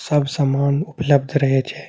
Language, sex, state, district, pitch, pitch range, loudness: Maithili, male, Bihar, Saharsa, 140 Hz, 135-150 Hz, -19 LUFS